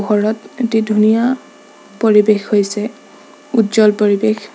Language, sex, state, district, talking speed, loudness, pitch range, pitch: Assamese, female, Assam, Sonitpur, 90 wpm, -15 LUFS, 210-225 Hz, 215 Hz